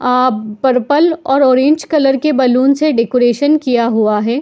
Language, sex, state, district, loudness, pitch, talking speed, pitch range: Hindi, female, Bihar, Madhepura, -12 LUFS, 260 Hz, 165 wpm, 240-290 Hz